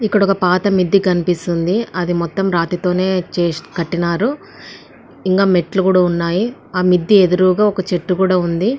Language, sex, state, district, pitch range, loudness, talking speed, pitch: Telugu, female, Andhra Pradesh, Anantapur, 175-195 Hz, -16 LUFS, 135 wpm, 185 Hz